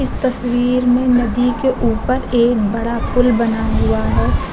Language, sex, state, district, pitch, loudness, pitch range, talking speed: Hindi, female, Uttar Pradesh, Lucknow, 245 Hz, -16 LUFS, 230-250 Hz, 145 wpm